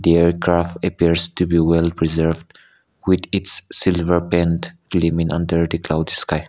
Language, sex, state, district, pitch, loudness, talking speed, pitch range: English, male, Nagaland, Kohima, 85 Hz, -18 LUFS, 130 wpm, 80-85 Hz